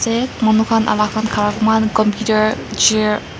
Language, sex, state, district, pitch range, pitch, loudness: Nagamese, female, Nagaland, Kohima, 215-220 Hz, 220 Hz, -16 LUFS